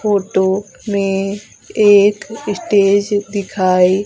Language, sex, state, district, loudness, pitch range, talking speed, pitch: Hindi, female, Madhya Pradesh, Umaria, -15 LUFS, 195-205 Hz, 75 wpm, 200 Hz